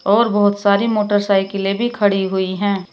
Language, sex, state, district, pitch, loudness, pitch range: Hindi, female, Uttar Pradesh, Shamli, 205 Hz, -17 LUFS, 195-205 Hz